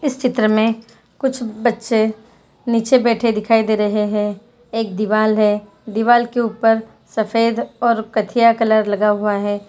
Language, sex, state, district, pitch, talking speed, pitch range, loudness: Hindi, female, Jharkhand, Jamtara, 225 Hz, 155 wpm, 215-235 Hz, -17 LUFS